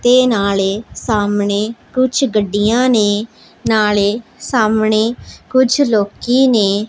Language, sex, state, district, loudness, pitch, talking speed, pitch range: Punjabi, female, Punjab, Pathankot, -15 LUFS, 220 Hz, 95 wpm, 205-245 Hz